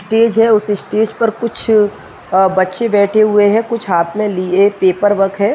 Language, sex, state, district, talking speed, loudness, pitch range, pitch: Hindi, male, Uttar Pradesh, Jyotiba Phule Nagar, 195 wpm, -13 LUFS, 195-220 Hz, 205 Hz